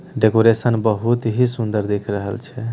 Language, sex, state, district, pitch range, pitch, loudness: Hindi, male, Bihar, Begusarai, 110-120 Hz, 115 Hz, -19 LUFS